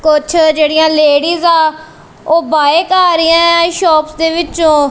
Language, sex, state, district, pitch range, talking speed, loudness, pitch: Punjabi, female, Punjab, Kapurthala, 310-335 Hz, 135 wpm, -10 LUFS, 320 Hz